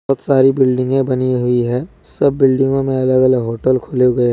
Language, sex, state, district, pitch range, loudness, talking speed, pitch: Hindi, male, Jharkhand, Deoghar, 125-135 Hz, -15 LUFS, 210 wpm, 130 Hz